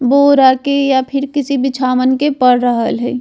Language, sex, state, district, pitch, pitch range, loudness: Bajjika, female, Bihar, Vaishali, 265 Hz, 255-280 Hz, -13 LUFS